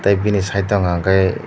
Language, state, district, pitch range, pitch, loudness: Kokborok, Tripura, Dhalai, 95-100 Hz, 100 Hz, -17 LUFS